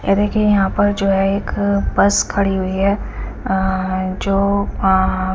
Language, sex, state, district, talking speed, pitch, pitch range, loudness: Hindi, female, Chandigarh, Chandigarh, 155 wpm, 195 Hz, 190-200 Hz, -17 LUFS